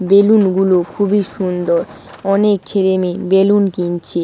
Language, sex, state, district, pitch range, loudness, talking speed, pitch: Bengali, female, West Bengal, Dakshin Dinajpur, 180-200 Hz, -15 LUFS, 125 wpm, 190 Hz